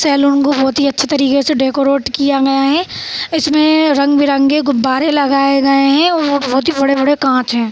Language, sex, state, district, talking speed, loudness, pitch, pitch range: Hindi, female, Bihar, Saharsa, 180 wpm, -13 LUFS, 280 Hz, 275-290 Hz